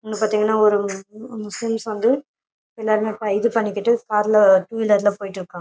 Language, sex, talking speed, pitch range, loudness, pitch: Tamil, female, 170 wpm, 205-225 Hz, -20 LUFS, 215 Hz